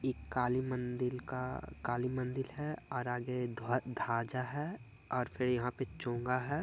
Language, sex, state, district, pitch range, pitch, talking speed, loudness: Hindi, male, Bihar, Jamui, 125-130 Hz, 125 Hz, 160 wpm, -37 LUFS